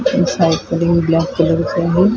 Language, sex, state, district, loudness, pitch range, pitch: Marathi, female, Maharashtra, Mumbai Suburban, -15 LUFS, 165-180 Hz, 170 Hz